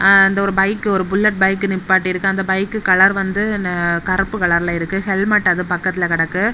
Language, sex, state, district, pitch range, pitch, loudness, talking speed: Tamil, female, Tamil Nadu, Kanyakumari, 185-195 Hz, 190 Hz, -16 LUFS, 175 wpm